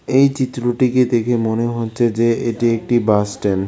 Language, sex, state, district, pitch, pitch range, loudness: Bengali, male, West Bengal, Cooch Behar, 120 Hz, 115-125 Hz, -17 LUFS